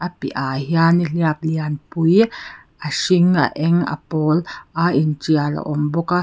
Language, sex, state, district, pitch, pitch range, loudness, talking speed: Mizo, female, Mizoram, Aizawl, 160 Hz, 150-170 Hz, -18 LUFS, 155 wpm